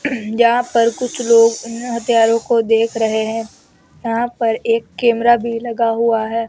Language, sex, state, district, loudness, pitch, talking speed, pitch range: Hindi, female, Rajasthan, Jaipur, -16 LUFS, 230 Hz, 155 wpm, 225-235 Hz